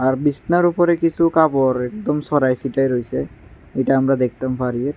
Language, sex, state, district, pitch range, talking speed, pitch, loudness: Bengali, male, Tripura, West Tripura, 130-155 Hz, 155 wpm, 135 Hz, -18 LUFS